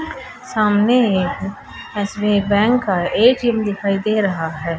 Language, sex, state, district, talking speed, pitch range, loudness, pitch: Hindi, female, Haryana, Charkhi Dadri, 125 wpm, 195-230 Hz, -17 LUFS, 205 Hz